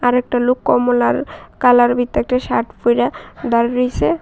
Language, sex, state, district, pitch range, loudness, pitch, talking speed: Bengali, female, Tripura, West Tripura, 240-250 Hz, -16 LUFS, 245 Hz, 140 wpm